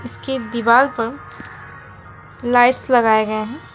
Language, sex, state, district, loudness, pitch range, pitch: Hindi, female, West Bengal, Alipurduar, -17 LUFS, 230-255 Hz, 240 Hz